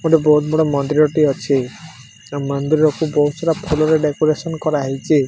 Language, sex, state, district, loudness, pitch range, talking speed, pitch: Odia, male, Odisha, Malkangiri, -17 LUFS, 140-155 Hz, 145 wpm, 150 Hz